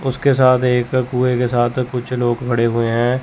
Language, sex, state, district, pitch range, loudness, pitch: Hindi, male, Chandigarh, Chandigarh, 120-130 Hz, -17 LUFS, 125 Hz